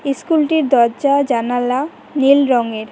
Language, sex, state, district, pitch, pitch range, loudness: Bengali, female, West Bengal, Cooch Behar, 270 Hz, 245-285 Hz, -15 LUFS